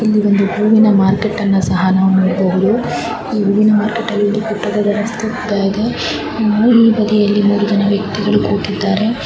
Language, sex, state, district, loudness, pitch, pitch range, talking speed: Kannada, female, Karnataka, Chamarajanagar, -14 LUFS, 210 Hz, 200-215 Hz, 150 wpm